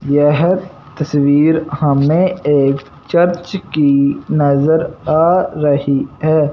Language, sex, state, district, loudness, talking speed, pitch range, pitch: Hindi, male, Punjab, Fazilka, -14 LUFS, 90 wpm, 140-160 Hz, 150 Hz